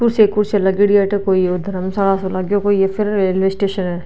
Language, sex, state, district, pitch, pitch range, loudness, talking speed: Marwari, female, Rajasthan, Nagaur, 195 Hz, 190-205 Hz, -16 LUFS, 235 wpm